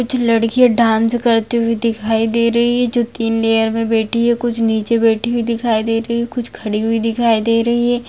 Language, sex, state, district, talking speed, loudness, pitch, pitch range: Hindi, female, Bihar, Begusarai, 225 wpm, -16 LUFS, 230 Hz, 225-235 Hz